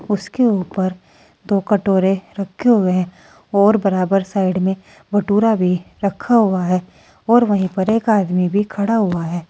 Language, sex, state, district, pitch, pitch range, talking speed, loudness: Hindi, female, Uttar Pradesh, Saharanpur, 195 Hz, 185-210 Hz, 160 wpm, -17 LUFS